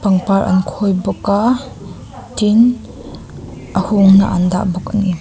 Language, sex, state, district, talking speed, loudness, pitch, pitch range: Mizo, female, Mizoram, Aizawl, 140 wpm, -14 LUFS, 195 Hz, 185-210 Hz